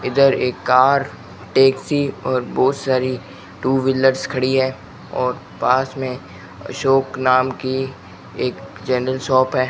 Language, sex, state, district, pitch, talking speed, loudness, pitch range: Hindi, male, Rajasthan, Bikaner, 130 Hz, 130 wpm, -19 LUFS, 125-135 Hz